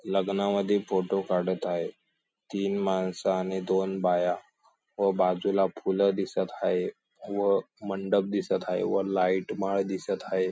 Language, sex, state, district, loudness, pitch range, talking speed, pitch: Marathi, male, Maharashtra, Sindhudurg, -28 LUFS, 95-100 Hz, 130 wpm, 95 Hz